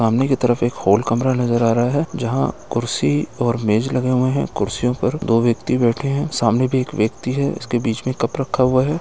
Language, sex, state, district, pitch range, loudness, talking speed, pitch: Hindi, male, Uttar Pradesh, Etah, 115-130 Hz, -19 LUFS, 240 wpm, 125 Hz